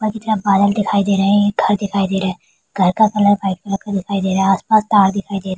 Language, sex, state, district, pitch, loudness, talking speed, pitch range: Hindi, female, Bihar, Kishanganj, 200 Hz, -16 LUFS, 280 wpm, 195-205 Hz